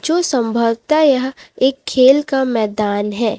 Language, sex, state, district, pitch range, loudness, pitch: Hindi, female, Chhattisgarh, Raipur, 225-275 Hz, -16 LUFS, 255 Hz